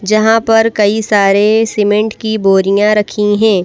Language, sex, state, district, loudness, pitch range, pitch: Hindi, female, Madhya Pradesh, Bhopal, -11 LUFS, 205-220 Hz, 210 Hz